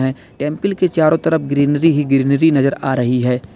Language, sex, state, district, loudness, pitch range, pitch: Hindi, male, Uttar Pradesh, Lalitpur, -16 LUFS, 130-160 Hz, 140 Hz